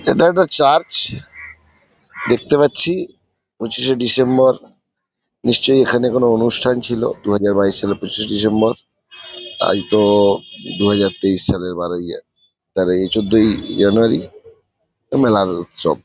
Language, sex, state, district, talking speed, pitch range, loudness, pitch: Bengali, male, West Bengal, Paschim Medinipur, 115 wpm, 100-125 Hz, -16 LUFS, 110 Hz